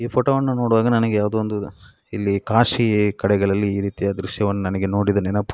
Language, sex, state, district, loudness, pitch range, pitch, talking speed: Kannada, male, Karnataka, Dakshina Kannada, -20 LUFS, 100-115 Hz, 105 Hz, 175 wpm